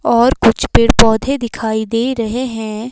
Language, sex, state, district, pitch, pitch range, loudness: Hindi, female, Himachal Pradesh, Shimla, 230 Hz, 220-250 Hz, -14 LUFS